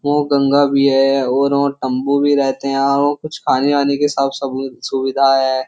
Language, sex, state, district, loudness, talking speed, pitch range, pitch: Hindi, male, Uttar Pradesh, Jyotiba Phule Nagar, -16 LUFS, 190 wpm, 135-140 Hz, 140 Hz